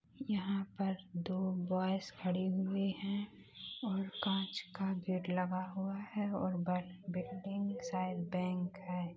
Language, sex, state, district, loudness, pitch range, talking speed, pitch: Hindi, female, Chhattisgarh, Rajnandgaon, -39 LUFS, 180-195 Hz, 125 wpm, 190 Hz